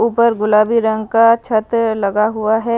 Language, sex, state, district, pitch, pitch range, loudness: Hindi, female, Himachal Pradesh, Shimla, 220 Hz, 215-230 Hz, -15 LUFS